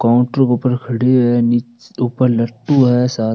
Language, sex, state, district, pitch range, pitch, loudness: Rajasthani, male, Rajasthan, Nagaur, 120-125 Hz, 125 Hz, -15 LUFS